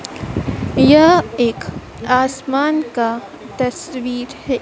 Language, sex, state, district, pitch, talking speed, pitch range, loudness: Hindi, female, Madhya Pradesh, Dhar, 255 Hz, 80 wpm, 245-290 Hz, -16 LUFS